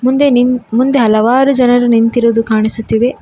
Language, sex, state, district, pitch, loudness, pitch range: Kannada, female, Karnataka, Koppal, 240 Hz, -11 LUFS, 225-255 Hz